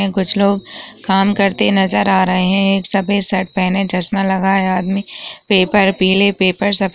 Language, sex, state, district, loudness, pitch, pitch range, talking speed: Hindi, female, Uttar Pradesh, Varanasi, -14 LUFS, 195 Hz, 190-200 Hz, 180 wpm